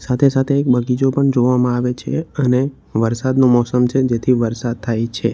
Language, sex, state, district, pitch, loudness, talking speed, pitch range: Gujarati, male, Gujarat, Valsad, 125 Hz, -17 LUFS, 180 wpm, 120-135 Hz